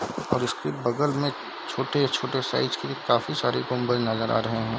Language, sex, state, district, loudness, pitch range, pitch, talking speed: Hindi, male, Bihar, Darbhanga, -26 LUFS, 115-140 Hz, 125 Hz, 190 wpm